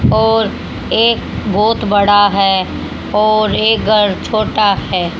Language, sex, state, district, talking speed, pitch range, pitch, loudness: Hindi, female, Haryana, Charkhi Dadri, 115 wpm, 200-220 Hz, 210 Hz, -13 LUFS